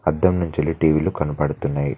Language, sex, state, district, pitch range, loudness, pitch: Telugu, male, Telangana, Mahabubabad, 75-85 Hz, -21 LUFS, 80 Hz